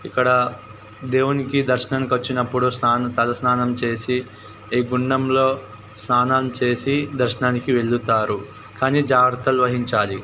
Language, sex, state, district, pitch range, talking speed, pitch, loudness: Telugu, male, Telangana, Karimnagar, 120-130 Hz, 95 wpm, 125 Hz, -20 LUFS